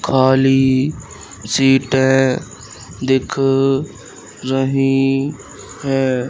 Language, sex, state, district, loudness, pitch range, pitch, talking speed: Hindi, male, Madhya Pradesh, Katni, -16 LUFS, 130-135 Hz, 135 Hz, 50 wpm